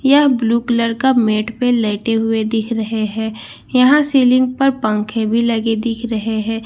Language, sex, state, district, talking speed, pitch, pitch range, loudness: Hindi, female, Bihar, Katihar, 200 wpm, 230 Hz, 220-250 Hz, -16 LUFS